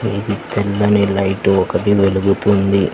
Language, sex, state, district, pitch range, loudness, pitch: Telugu, male, Telangana, Hyderabad, 95-100 Hz, -16 LUFS, 100 Hz